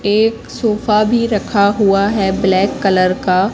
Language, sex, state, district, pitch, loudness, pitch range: Hindi, female, Madhya Pradesh, Katni, 200 Hz, -14 LUFS, 190-220 Hz